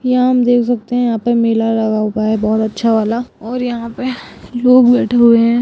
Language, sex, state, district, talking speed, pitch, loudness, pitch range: Hindi, female, Bihar, Purnia, 225 wpm, 235 Hz, -14 LUFS, 225-245 Hz